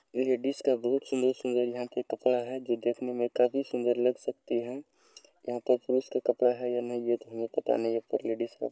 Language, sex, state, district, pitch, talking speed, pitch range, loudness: Maithili, male, Bihar, Supaul, 125 Hz, 240 wpm, 120-130 Hz, -30 LUFS